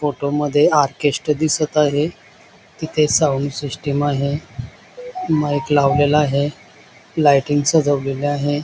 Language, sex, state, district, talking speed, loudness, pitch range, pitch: Marathi, male, Maharashtra, Dhule, 95 wpm, -18 LUFS, 140-150 Hz, 145 Hz